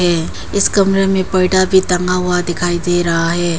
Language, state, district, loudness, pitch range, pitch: Hindi, Arunachal Pradesh, Papum Pare, -14 LUFS, 175-190 Hz, 180 Hz